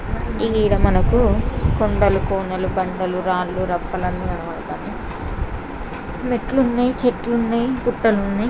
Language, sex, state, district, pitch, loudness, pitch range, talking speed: Telugu, female, Andhra Pradesh, Krishna, 225 Hz, -21 LUFS, 185-245 Hz, 85 wpm